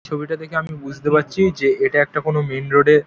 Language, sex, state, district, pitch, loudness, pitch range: Bengali, male, West Bengal, Paschim Medinipur, 150 Hz, -19 LUFS, 145-160 Hz